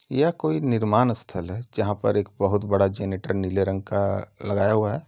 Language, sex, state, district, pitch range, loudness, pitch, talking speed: Hindi, male, Uttar Pradesh, Jalaun, 100-110 Hz, -24 LUFS, 100 Hz, 190 wpm